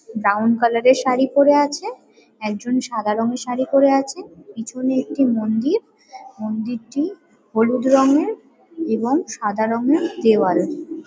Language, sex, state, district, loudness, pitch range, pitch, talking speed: Bengali, female, West Bengal, Kolkata, -19 LUFS, 225-290 Hz, 255 Hz, 120 wpm